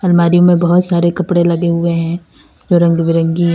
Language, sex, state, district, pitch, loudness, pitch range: Hindi, female, Uttar Pradesh, Lalitpur, 170 Hz, -13 LUFS, 170-175 Hz